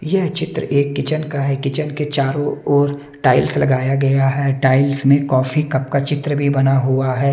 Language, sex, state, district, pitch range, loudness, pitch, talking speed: Hindi, male, Bihar, West Champaran, 135-145 Hz, -17 LUFS, 140 Hz, 195 wpm